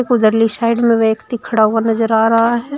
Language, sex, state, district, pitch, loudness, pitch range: Hindi, female, Uttar Pradesh, Shamli, 225 Hz, -14 LUFS, 225-235 Hz